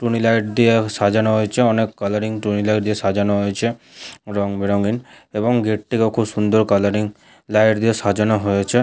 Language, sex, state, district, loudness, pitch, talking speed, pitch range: Bengali, male, West Bengal, Paschim Medinipur, -18 LUFS, 105 Hz, 135 wpm, 100-115 Hz